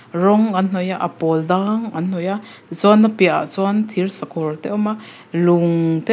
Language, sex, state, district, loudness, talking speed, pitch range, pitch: Mizo, female, Mizoram, Aizawl, -18 LUFS, 215 wpm, 170-210 Hz, 185 Hz